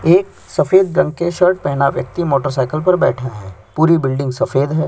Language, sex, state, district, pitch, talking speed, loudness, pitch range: Hindi, male, Chhattisgarh, Sukma, 160 Hz, 185 wpm, -16 LUFS, 135-180 Hz